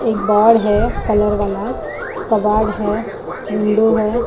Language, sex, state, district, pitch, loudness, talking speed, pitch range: Hindi, female, Maharashtra, Mumbai Suburban, 215 Hz, -16 LUFS, 125 wpm, 210-225 Hz